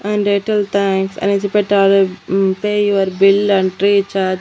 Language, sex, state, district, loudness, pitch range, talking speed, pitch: Telugu, female, Andhra Pradesh, Annamaya, -15 LUFS, 195-205 Hz, 165 wpm, 200 Hz